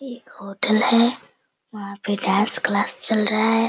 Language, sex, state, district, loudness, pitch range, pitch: Hindi, female, Bihar, Sitamarhi, -18 LUFS, 205-235 Hz, 215 Hz